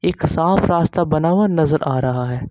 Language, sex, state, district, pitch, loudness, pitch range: Hindi, male, Uttar Pradesh, Lucknow, 160 Hz, -17 LUFS, 135-175 Hz